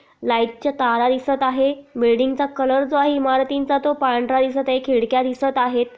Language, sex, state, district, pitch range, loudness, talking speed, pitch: Marathi, female, Maharashtra, Aurangabad, 250-275 Hz, -19 LUFS, 180 wpm, 260 Hz